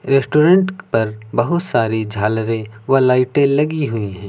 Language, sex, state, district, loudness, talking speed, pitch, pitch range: Hindi, male, Uttar Pradesh, Lucknow, -17 LUFS, 140 wpm, 125 Hz, 110-150 Hz